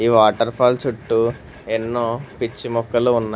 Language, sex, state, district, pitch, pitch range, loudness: Telugu, male, Telangana, Hyderabad, 115 Hz, 115-120 Hz, -20 LUFS